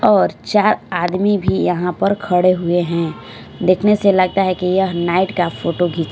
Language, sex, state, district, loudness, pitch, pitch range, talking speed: Hindi, female, Punjab, Fazilka, -16 LUFS, 180 Hz, 175-195 Hz, 185 wpm